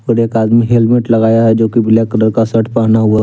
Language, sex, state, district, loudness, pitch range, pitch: Hindi, male, Jharkhand, Deoghar, -11 LUFS, 110-115 Hz, 115 Hz